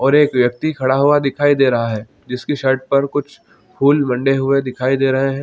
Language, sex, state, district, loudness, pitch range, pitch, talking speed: Hindi, male, Chhattisgarh, Bilaspur, -16 LUFS, 130-145 Hz, 135 Hz, 220 wpm